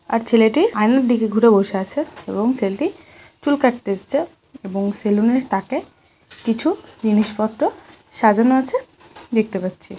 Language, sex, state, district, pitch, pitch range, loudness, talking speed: Bengali, female, West Bengal, Jhargram, 230 Hz, 210-280 Hz, -19 LUFS, 125 wpm